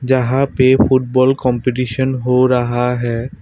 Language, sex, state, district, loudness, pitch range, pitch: Hindi, male, Assam, Kamrup Metropolitan, -15 LUFS, 125-130 Hz, 130 Hz